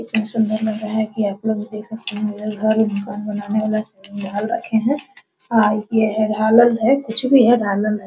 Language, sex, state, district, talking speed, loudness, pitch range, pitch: Hindi, female, Bihar, Araria, 200 wpm, -18 LUFS, 210-225 Hz, 215 Hz